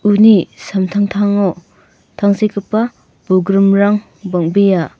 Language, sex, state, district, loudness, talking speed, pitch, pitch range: Garo, female, Meghalaya, North Garo Hills, -14 LUFS, 60 wpm, 200 Hz, 190-205 Hz